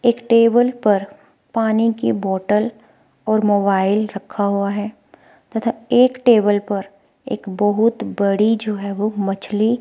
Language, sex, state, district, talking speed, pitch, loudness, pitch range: Hindi, female, Himachal Pradesh, Shimla, 135 wpm, 210 Hz, -18 LUFS, 200-230 Hz